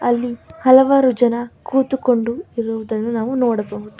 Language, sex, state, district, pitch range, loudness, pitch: Kannada, female, Karnataka, Bangalore, 225-255 Hz, -17 LUFS, 240 Hz